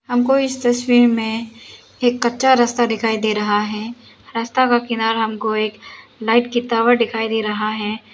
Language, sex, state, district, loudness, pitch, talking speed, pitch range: Hindi, female, Arunachal Pradesh, Lower Dibang Valley, -18 LUFS, 230 Hz, 170 wpm, 220-240 Hz